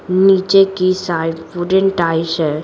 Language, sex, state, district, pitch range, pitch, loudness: Hindi, female, Bihar, Patna, 165-190 Hz, 180 Hz, -15 LUFS